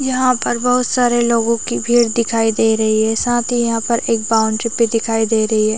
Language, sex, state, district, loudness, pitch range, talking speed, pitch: Hindi, female, Chhattisgarh, Raigarh, -15 LUFS, 225-240 Hz, 230 wpm, 230 Hz